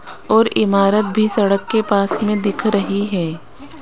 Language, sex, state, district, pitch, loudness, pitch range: Hindi, female, Rajasthan, Jaipur, 205 Hz, -17 LUFS, 200-215 Hz